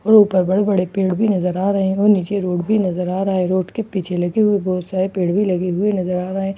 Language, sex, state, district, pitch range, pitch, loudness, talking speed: Hindi, female, Bihar, Katihar, 180-200 Hz, 190 Hz, -18 LUFS, 290 wpm